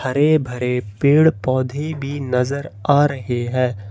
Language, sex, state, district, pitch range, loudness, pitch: Hindi, male, Jharkhand, Ranchi, 125-145 Hz, -19 LUFS, 130 Hz